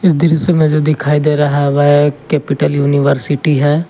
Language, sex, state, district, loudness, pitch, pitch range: Hindi, male, Jharkhand, Garhwa, -13 LUFS, 150 Hz, 145-155 Hz